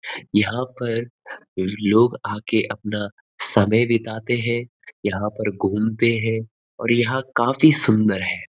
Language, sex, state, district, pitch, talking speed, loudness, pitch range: Hindi, male, Uttarakhand, Uttarkashi, 110 Hz, 120 wpm, -21 LUFS, 105-120 Hz